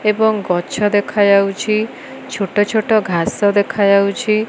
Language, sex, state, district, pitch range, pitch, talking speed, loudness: Odia, female, Odisha, Malkangiri, 200-220 Hz, 210 Hz, 95 wpm, -15 LUFS